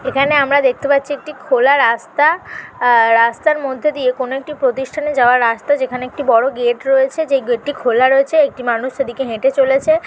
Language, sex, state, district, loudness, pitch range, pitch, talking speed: Bengali, female, West Bengal, North 24 Parganas, -15 LUFS, 250-290 Hz, 270 Hz, 180 wpm